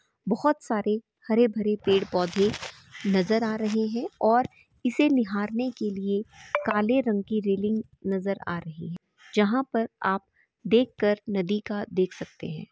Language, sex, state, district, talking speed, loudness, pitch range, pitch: Hindi, female, Chhattisgarh, Bastar, 150 wpm, -26 LUFS, 195-225 Hz, 210 Hz